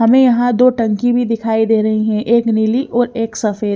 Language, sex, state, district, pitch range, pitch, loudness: Hindi, female, Chandigarh, Chandigarh, 220-245 Hz, 230 Hz, -14 LUFS